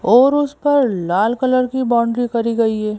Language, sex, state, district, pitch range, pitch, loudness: Hindi, female, Madhya Pradesh, Bhopal, 225-260 Hz, 240 Hz, -16 LUFS